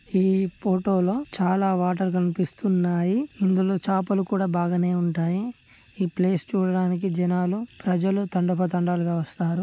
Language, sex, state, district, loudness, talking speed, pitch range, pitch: Telugu, male, Telangana, Nalgonda, -24 LUFS, 110 wpm, 180-195 Hz, 185 Hz